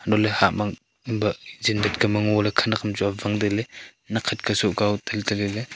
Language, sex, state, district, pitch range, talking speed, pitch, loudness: Wancho, male, Arunachal Pradesh, Longding, 105-110 Hz, 200 wpm, 105 Hz, -23 LUFS